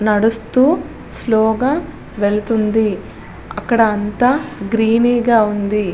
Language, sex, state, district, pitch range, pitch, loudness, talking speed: Telugu, female, Andhra Pradesh, Visakhapatnam, 210-240 Hz, 220 Hz, -16 LUFS, 90 wpm